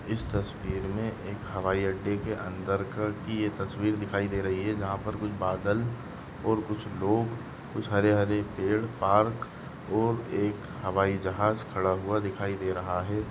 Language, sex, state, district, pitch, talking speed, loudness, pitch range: Hindi, male, Chhattisgarh, Rajnandgaon, 105 Hz, 170 wpm, -30 LUFS, 95-110 Hz